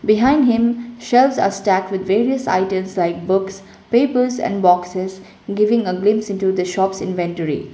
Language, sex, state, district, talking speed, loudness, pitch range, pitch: English, female, Sikkim, Gangtok, 155 wpm, -18 LUFS, 185-235 Hz, 195 Hz